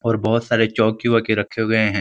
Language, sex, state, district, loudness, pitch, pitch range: Hindi, male, Uttar Pradesh, Ghazipur, -19 LUFS, 110 Hz, 110-115 Hz